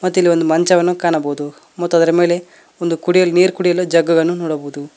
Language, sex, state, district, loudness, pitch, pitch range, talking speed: Kannada, male, Karnataka, Koppal, -15 LUFS, 170 Hz, 165-180 Hz, 155 wpm